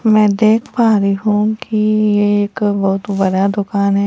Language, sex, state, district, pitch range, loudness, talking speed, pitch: Hindi, female, Bihar, Katihar, 200-215 Hz, -14 LUFS, 175 wpm, 205 Hz